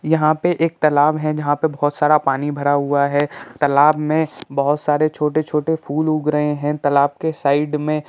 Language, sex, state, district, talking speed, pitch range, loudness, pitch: Hindi, male, Bihar, Saran, 195 wpm, 145-155 Hz, -18 LUFS, 150 Hz